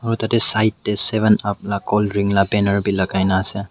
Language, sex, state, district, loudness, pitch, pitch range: Nagamese, male, Nagaland, Dimapur, -18 LUFS, 100 Hz, 100-110 Hz